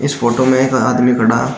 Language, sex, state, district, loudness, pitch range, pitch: Hindi, male, Uttar Pradesh, Shamli, -13 LUFS, 125-130 Hz, 130 Hz